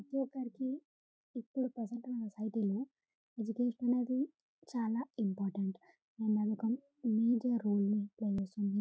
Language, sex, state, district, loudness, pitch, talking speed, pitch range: Telugu, female, Telangana, Karimnagar, -37 LUFS, 230 Hz, 120 wpm, 210-250 Hz